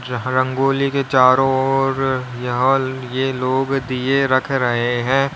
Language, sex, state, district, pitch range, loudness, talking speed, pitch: Hindi, male, Uttar Pradesh, Lalitpur, 130-135 Hz, -18 LUFS, 145 wpm, 130 Hz